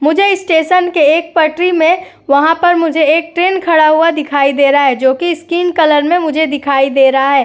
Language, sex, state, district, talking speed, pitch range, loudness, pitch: Hindi, female, Uttar Pradesh, Etah, 210 wpm, 285-345 Hz, -11 LUFS, 320 Hz